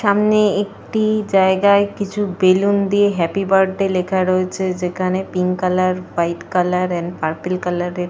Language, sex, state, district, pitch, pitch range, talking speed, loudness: Bengali, female, Jharkhand, Jamtara, 185 Hz, 180-200 Hz, 155 wpm, -18 LUFS